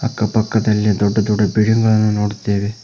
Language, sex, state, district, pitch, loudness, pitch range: Kannada, male, Karnataka, Koppal, 105 Hz, -16 LUFS, 105-110 Hz